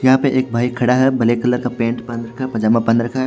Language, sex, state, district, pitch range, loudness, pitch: Hindi, male, Haryana, Jhajjar, 115-130 Hz, -17 LUFS, 120 Hz